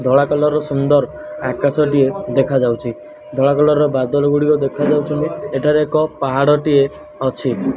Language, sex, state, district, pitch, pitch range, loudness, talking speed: Odia, male, Odisha, Nuapada, 145 Hz, 135-150 Hz, -16 LUFS, 145 wpm